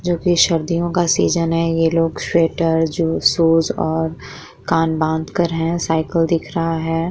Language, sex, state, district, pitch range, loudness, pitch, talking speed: Hindi, female, Uttar Pradesh, Muzaffarnagar, 160-170 Hz, -18 LUFS, 165 Hz, 160 wpm